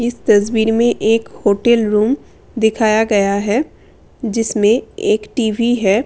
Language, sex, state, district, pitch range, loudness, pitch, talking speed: Hindi, female, Delhi, New Delhi, 215-240 Hz, -15 LUFS, 225 Hz, 130 wpm